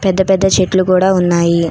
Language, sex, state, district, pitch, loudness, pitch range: Telugu, female, Telangana, Hyderabad, 185 Hz, -12 LUFS, 175-190 Hz